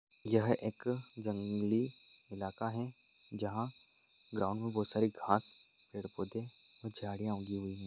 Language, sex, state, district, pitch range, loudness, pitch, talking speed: Hindi, male, Bihar, Supaul, 100-115 Hz, -38 LUFS, 110 Hz, 130 wpm